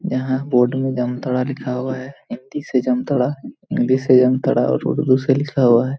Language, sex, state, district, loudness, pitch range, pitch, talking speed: Hindi, male, Jharkhand, Jamtara, -19 LUFS, 125-135 Hz, 130 Hz, 190 wpm